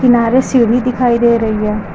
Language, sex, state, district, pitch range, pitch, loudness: Hindi, female, Uttar Pradesh, Lucknow, 225-250 Hz, 235 Hz, -12 LUFS